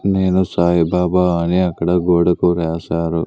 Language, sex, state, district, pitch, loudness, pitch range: Telugu, male, Andhra Pradesh, Sri Satya Sai, 90 Hz, -16 LUFS, 85-90 Hz